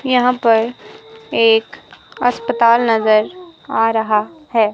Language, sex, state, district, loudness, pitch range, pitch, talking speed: Hindi, female, Himachal Pradesh, Shimla, -15 LUFS, 225-275 Hz, 235 Hz, 100 wpm